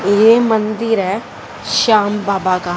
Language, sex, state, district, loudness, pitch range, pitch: Hindi, female, Haryana, Rohtak, -14 LUFS, 195-220 Hz, 210 Hz